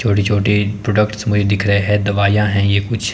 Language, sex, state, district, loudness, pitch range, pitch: Hindi, male, Himachal Pradesh, Shimla, -16 LUFS, 100-105 Hz, 105 Hz